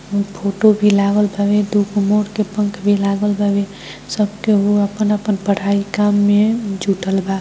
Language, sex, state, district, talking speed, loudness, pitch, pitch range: Hindi, female, Bihar, Gopalganj, 170 wpm, -16 LUFS, 205 Hz, 200-210 Hz